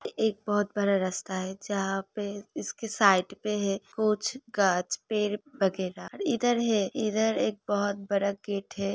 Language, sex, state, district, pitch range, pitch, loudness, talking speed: Hindi, female, Uttar Pradesh, Hamirpur, 195-215 Hz, 205 Hz, -29 LUFS, 155 wpm